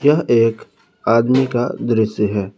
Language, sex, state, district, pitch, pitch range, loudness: Hindi, male, Jharkhand, Garhwa, 115 Hz, 110-125 Hz, -17 LUFS